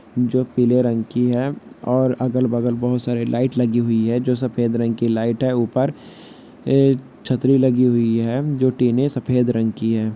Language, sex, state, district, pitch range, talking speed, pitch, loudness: Hindi, male, Jharkhand, Jamtara, 120-130 Hz, 190 wpm, 125 Hz, -19 LUFS